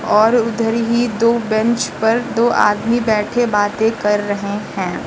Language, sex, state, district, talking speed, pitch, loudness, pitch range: Hindi, female, Uttar Pradesh, Lucknow, 155 wpm, 225 Hz, -16 LUFS, 210-235 Hz